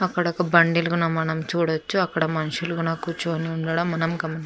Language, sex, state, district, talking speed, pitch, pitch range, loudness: Telugu, female, Andhra Pradesh, Chittoor, 175 wpm, 165 Hz, 160-170 Hz, -23 LUFS